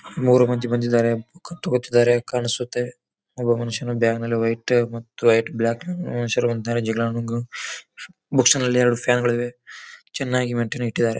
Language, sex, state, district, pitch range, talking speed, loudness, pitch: Kannada, male, Karnataka, Bijapur, 115-125 Hz, 110 wpm, -22 LUFS, 120 Hz